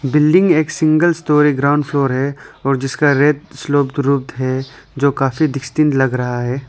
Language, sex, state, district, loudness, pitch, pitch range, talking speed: Hindi, male, Arunachal Pradesh, Lower Dibang Valley, -16 LUFS, 140 Hz, 135-150 Hz, 155 wpm